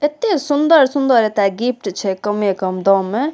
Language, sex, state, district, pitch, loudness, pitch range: Maithili, female, Bihar, Saharsa, 230 Hz, -16 LUFS, 195-290 Hz